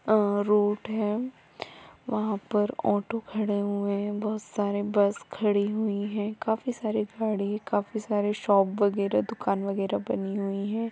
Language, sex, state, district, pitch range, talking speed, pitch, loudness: Hindi, female, Jharkhand, Jamtara, 200-215 Hz, 150 wpm, 205 Hz, -28 LUFS